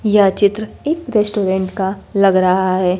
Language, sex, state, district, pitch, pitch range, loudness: Hindi, female, Bihar, Kaimur, 195 Hz, 190-210 Hz, -16 LUFS